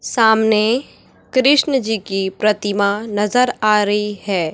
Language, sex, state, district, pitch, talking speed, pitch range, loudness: Hindi, female, Chhattisgarh, Raipur, 215 Hz, 120 wpm, 205-230 Hz, -16 LUFS